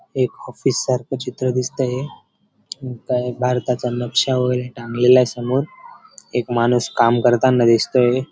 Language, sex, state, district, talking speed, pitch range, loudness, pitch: Marathi, male, Maharashtra, Dhule, 130 wpm, 120-130 Hz, -19 LUFS, 125 Hz